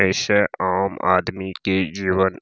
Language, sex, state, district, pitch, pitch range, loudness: Maithili, male, Bihar, Saharsa, 95 Hz, 95-100 Hz, -21 LUFS